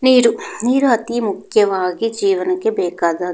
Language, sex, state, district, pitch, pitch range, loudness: Kannada, female, Karnataka, Mysore, 235 Hz, 205-275 Hz, -17 LUFS